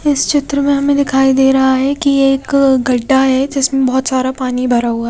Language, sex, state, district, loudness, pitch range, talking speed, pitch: Hindi, female, Odisha, Nuapada, -13 LUFS, 260-280 Hz, 225 wpm, 270 Hz